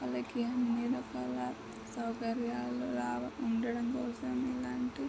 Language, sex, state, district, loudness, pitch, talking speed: Telugu, male, Andhra Pradesh, Chittoor, -36 LUFS, 235 Hz, 95 wpm